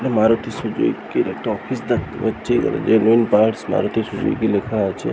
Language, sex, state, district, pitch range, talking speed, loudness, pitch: Bengali, male, West Bengal, Purulia, 105-115 Hz, 185 wpm, -19 LUFS, 110 Hz